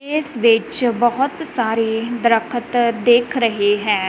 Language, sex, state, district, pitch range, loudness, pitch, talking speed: Punjabi, female, Punjab, Kapurthala, 225-245 Hz, -17 LUFS, 235 Hz, 115 wpm